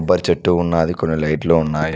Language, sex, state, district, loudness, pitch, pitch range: Telugu, male, Telangana, Mahabubabad, -17 LUFS, 80 Hz, 75-85 Hz